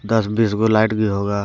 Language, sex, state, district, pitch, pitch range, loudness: Hindi, male, Jharkhand, Deoghar, 110 Hz, 105-110 Hz, -18 LUFS